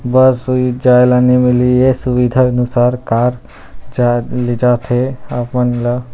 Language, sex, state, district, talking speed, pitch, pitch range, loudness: Chhattisgarhi, male, Chhattisgarh, Rajnandgaon, 115 wpm, 125 Hz, 120-125 Hz, -13 LUFS